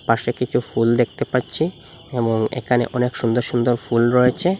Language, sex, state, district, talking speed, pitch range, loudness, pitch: Bengali, male, Assam, Hailakandi, 155 wpm, 115-125 Hz, -19 LUFS, 125 Hz